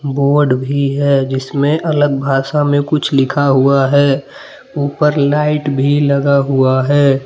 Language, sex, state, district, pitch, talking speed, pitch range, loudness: Hindi, male, Jharkhand, Palamu, 140 Hz, 140 wpm, 135-145 Hz, -13 LUFS